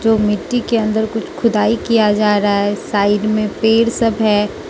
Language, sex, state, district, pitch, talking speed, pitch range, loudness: Hindi, female, Mizoram, Aizawl, 215 Hz, 190 wpm, 210-225 Hz, -15 LUFS